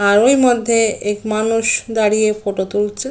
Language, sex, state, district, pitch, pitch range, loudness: Bengali, female, West Bengal, Jalpaiguri, 215 Hz, 210-225 Hz, -16 LUFS